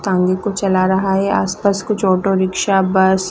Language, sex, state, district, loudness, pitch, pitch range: Hindi, female, Chhattisgarh, Raigarh, -16 LUFS, 190 Hz, 185-195 Hz